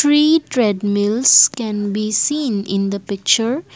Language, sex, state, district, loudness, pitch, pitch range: English, female, Assam, Kamrup Metropolitan, -16 LUFS, 215 Hz, 205-265 Hz